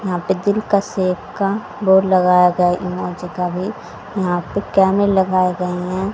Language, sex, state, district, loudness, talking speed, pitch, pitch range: Hindi, female, Haryana, Jhajjar, -17 LUFS, 175 wpm, 185 Hz, 180-195 Hz